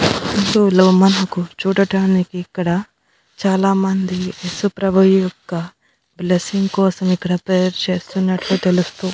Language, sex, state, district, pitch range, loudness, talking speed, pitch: Telugu, female, Andhra Pradesh, Annamaya, 180-195 Hz, -17 LUFS, 80 wpm, 185 Hz